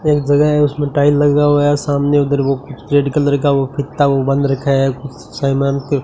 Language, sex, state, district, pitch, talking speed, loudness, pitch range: Hindi, male, Rajasthan, Bikaner, 140 Hz, 240 wpm, -15 LUFS, 140-145 Hz